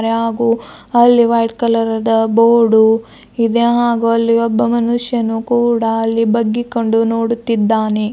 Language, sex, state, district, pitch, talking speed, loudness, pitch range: Kannada, female, Karnataka, Bidar, 230 Hz, 110 wpm, -14 LUFS, 225-235 Hz